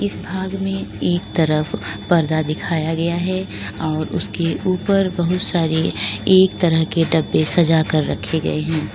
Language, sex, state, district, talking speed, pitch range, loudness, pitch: Hindi, female, Uttar Pradesh, Lalitpur, 155 wpm, 160-185 Hz, -19 LUFS, 170 Hz